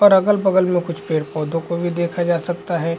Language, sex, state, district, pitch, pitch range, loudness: Hindi, male, Chhattisgarh, Raigarh, 175 Hz, 165-185 Hz, -19 LUFS